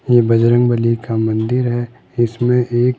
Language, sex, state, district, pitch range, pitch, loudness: Hindi, male, Rajasthan, Jaipur, 115-120 Hz, 120 Hz, -16 LUFS